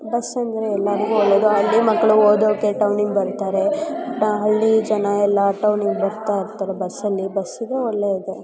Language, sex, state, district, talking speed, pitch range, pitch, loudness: Kannada, male, Karnataka, Mysore, 90 wpm, 200-220 Hz, 210 Hz, -19 LUFS